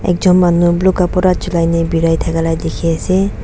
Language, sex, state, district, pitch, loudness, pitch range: Nagamese, female, Nagaland, Dimapur, 175 Hz, -14 LUFS, 165-185 Hz